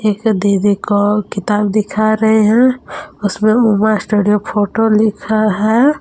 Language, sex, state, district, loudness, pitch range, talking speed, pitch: Hindi, female, Jharkhand, Palamu, -13 LUFS, 205-220 Hz, 130 wpm, 215 Hz